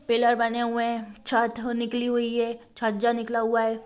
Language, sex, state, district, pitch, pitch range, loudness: Hindi, female, Bihar, Gopalganj, 235 Hz, 230-235 Hz, -26 LUFS